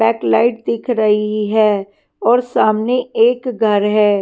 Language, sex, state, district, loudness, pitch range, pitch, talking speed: Hindi, female, Himachal Pradesh, Shimla, -15 LUFS, 205-240 Hz, 215 Hz, 140 wpm